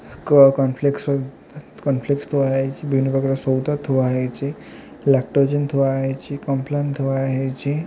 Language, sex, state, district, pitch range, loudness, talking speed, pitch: Odia, male, Odisha, Khordha, 135-140 Hz, -20 LUFS, 120 wpm, 135 Hz